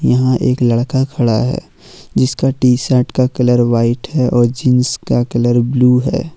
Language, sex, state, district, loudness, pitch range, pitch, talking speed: Hindi, male, Jharkhand, Ranchi, -14 LUFS, 120-130 Hz, 125 Hz, 170 wpm